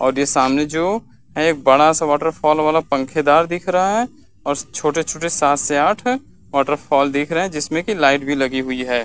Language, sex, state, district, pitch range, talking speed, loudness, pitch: Hindi, male, Uttar Pradesh, Varanasi, 140-165 Hz, 205 wpm, -18 LUFS, 150 Hz